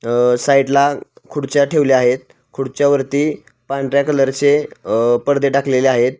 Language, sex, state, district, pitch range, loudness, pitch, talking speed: Marathi, male, Maharashtra, Pune, 130-145 Hz, -16 LUFS, 140 Hz, 115 wpm